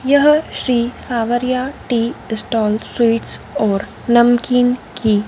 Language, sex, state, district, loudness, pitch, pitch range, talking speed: Hindi, female, Madhya Pradesh, Dhar, -16 LUFS, 240 Hz, 225-255 Hz, 100 wpm